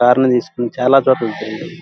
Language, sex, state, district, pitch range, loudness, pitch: Telugu, male, Andhra Pradesh, Krishna, 120-130 Hz, -16 LUFS, 125 Hz